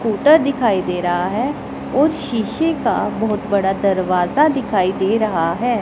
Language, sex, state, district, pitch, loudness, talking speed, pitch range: Hindi, male, Punjab, Pathankot, 220 Hz, -17 LUFS, 155 wpm, 190-270 Hz